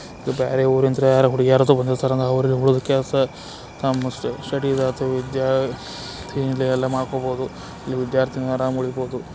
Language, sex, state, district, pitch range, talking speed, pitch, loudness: Kannada, male, Karnataka, Belgaum, 130-135 Hz, 130 wpm, 130 Hz, -21 LUFS